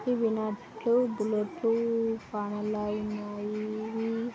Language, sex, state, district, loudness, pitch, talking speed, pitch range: Telugu, female, Andhra Pradesh, Srikakulam, -31 LUFS, 215 Hz, 95 wpm, 210-230 Hz